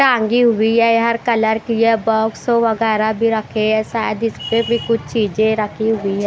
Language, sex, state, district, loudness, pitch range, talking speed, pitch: Hindi, female, Bihar, West Champaran, -16 LUFS, 220-230 Hz, 190 wpm, 225 Hz